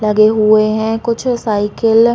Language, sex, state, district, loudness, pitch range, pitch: Hindi, female, Chhattisgarh, Balrampur, -13 LUFS, 215-230 Hz, 220 Hz